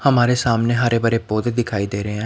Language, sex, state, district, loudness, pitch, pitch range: Hindi, male, Bihar, Patna, -19 LUFS, 115 Hz, 110-120 Hz